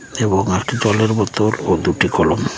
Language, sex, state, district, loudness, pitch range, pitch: Bengali, male, West Bengal, Paschim Medinipur, -17 LUFS, 105-110 Hz, 105 Hz